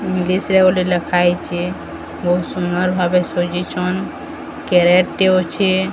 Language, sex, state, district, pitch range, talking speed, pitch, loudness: Odia, male, Odisha, Sambalpur, 175-185 Hz, 120 wpm, 180 Hz, -17 LUFS